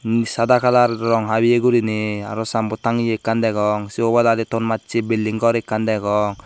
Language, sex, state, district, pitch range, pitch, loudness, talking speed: Chakma, male, Tripura, Dhalai, 110-115 Hz, 115 Hz, -19 LUFS, 175 wpm